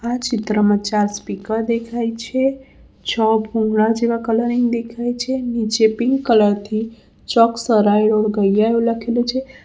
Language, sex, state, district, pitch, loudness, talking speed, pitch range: Gujarati, female, Gujarat, Valsad, 230 Hz, -18 LUFS, 145 wpm, 215-240 Hz